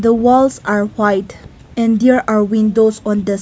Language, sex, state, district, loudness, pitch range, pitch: English, female, Nagaland, Kohima, -14 LUFS, 205-230 Hz, 220 Hz